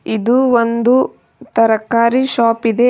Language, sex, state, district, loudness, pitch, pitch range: Kannada, female, Karnataka, Bidar, -14 LUFS, 235 Hz, 230-250 Hz